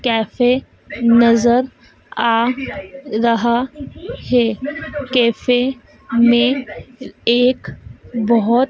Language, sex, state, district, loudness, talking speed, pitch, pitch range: Hindi, female, Madhya Pradesh, Dhar, -16 LUFS, 60 wpm, 240 Hz, 235-260 Hz